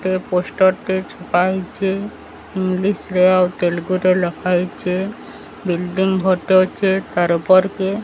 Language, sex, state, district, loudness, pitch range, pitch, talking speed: Odia, male, Odisha, Sambalpur, -18 LUFS, 180-190 Hz, 185 Hz, 125 wpm